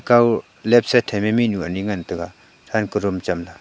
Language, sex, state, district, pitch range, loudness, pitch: Wancho, male, Arunachal Pradesh, Longding, 95-120 Hz, -20 LUFS, 105 Hz